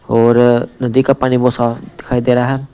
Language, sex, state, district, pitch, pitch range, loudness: Hindi, male, Punjab, Pathankot, 125 Hz, 120-130 Hz, -14 LUFS